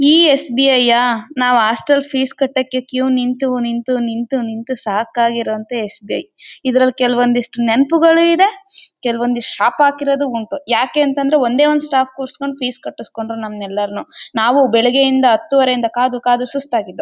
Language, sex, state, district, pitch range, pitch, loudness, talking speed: Kannada, female, Karnataka, Mysore, 235-280 Hz, 255 Hz, -15 LUFS, 140 wpm